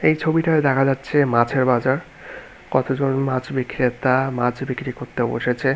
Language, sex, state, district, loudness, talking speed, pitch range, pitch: Bengali, male, West Bengal, Malda, -20 LUFS, 135 wpm, 125-135 Hz, 130 Hz